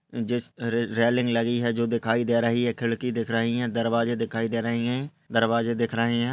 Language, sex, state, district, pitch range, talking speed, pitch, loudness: Hindi, male, Goa, North and South Goa, 115-120 Hz, 220 wpm, 115 Hz, -25 LUFS